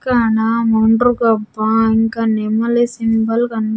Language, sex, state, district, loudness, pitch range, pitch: Telugu, female, Andhra Pradesh, Sri Satya Sai, -15 LUFS, 220-235 Hz, 225 Hz